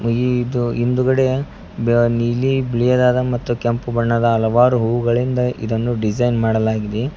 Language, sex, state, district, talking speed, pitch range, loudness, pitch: Kannada, male, Karnataka, Koppal, 115 wpm, 115-125 Hz, -18 LUFS, 120 Hz